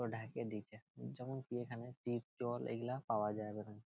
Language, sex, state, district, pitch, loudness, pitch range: Bengali, male, West Bengal, Jhargram, 115 Hz, -44 LUFS, 105-120 Hz